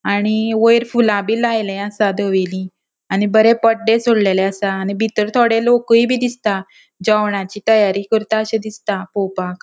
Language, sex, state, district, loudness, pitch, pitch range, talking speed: Konkani, female, Goa, North and South Goa, -16 LUFS, 215 Hz, 195-225 Hz, 145 wpm